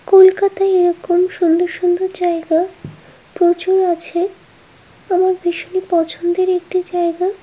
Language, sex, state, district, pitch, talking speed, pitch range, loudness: Bengali, female, West Bengal, Kolkata, 360 Hz, 105 wpm, 345-375 Hz, -16 LUFS